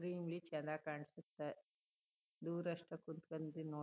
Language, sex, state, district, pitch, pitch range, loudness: Kannada, female, Karnataka, Chamarajanagar, 160 Hz, 155-170 Hz, -48 LUFS